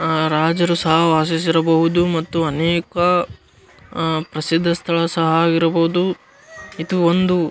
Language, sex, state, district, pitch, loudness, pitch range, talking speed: Kannada, male, Karnataka, Gulbarga, 165 Hz, -17 LUFS, 160-175 Hz, 105 wpm